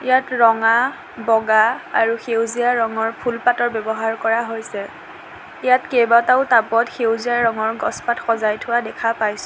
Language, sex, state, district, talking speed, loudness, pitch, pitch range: Assamese, female, Assam, Sonitpur, 135 wpm, -18 LUFS, 230 Hz, 225-240 Hz